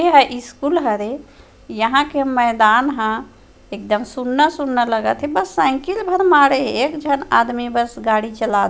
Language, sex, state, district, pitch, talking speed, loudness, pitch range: Chhattisgarhi, female, Chhattisgarh, Rajnandgaon, 255 Hz, 170 wpm, -17 LUFS, 225-285 Hz